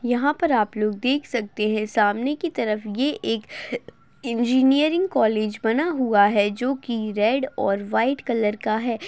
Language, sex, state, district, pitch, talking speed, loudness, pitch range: Hindi, female, Bihar, Begusarai, 235 Hz, 165 wpm, -22 LUFS, 215-270 Hz